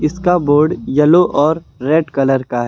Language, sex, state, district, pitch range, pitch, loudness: Hindi, male, Uttar Pradesh, Lucknow, 135-165 Hz, 150 Hz, -14 LUFS